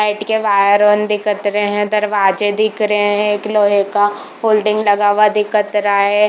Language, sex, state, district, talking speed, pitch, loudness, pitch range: Hindi, female, Chhattisgarh, Bilaspur, 170 wpm, 210 Hz, -14 LUFS, 205-210 Hz